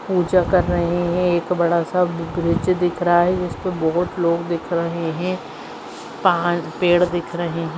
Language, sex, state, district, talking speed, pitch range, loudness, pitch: Hindi, female, Maharashtra, Nagpur, 170 wpm, 170-180 Hz, -20 LUFS, 175 Hz